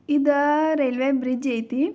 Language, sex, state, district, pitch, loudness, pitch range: Kannada, female, Karnataka, Belgaum, 280 Hz, -22 LUFS, 255-295 Hz